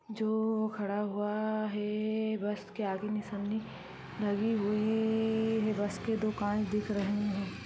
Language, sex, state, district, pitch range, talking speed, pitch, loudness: Hindi, female, Rajasthan, Churu, 205-220 Hz, 140 wpm, 210 Hz, -33 LUFS